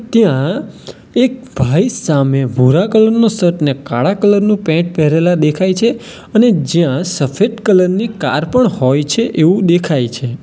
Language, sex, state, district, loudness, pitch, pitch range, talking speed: Gujarati, male, Gujarat, Valsad, -13 LUFS, 175 Hz, 150-220 Hz, 160 wpm